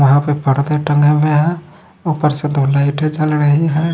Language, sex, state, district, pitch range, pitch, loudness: Hindi, male, Odisha, Khordha, 145-155 Hz, 150 Hz, -15 LUFS